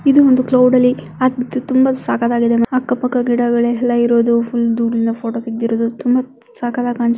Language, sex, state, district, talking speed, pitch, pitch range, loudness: Kannada, female, Karnataka, Mysore, 165 wpm, 240 Hz, 235-255 Hz, -15 LUFS